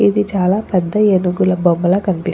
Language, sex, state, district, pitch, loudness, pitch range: Telugu, female, Andhra Pradesh, Chittoor, 185 Hz, -15 LUFS, 175-190 Hz